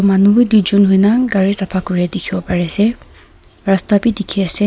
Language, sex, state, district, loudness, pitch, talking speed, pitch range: Nagamese, female, Nagaland, Kohima, -14 LUFS, 200 Hz, 205 wpm, 190-210 Hz